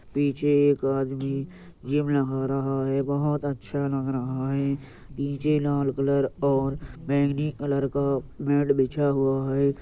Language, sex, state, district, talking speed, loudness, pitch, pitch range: Hindi, male, Uttar Pradesh, Jyotiba Phule Nagar, 140 wpm, -25 LUFS, 140 Hz, 135-145 Hz